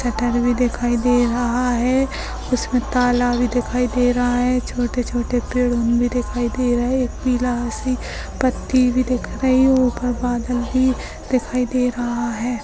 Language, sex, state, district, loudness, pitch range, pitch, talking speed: Hindi, female, Maharashtra, Solapur, -19 LUFS, 245-250 Hz, 245 Hz, 160 wpm